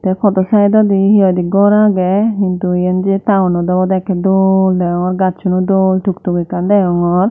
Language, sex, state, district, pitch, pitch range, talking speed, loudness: Chakma, female, Tripura, Dhalai, 190 Hz, 180-195 Hz, 155 wpm, -13 LUFS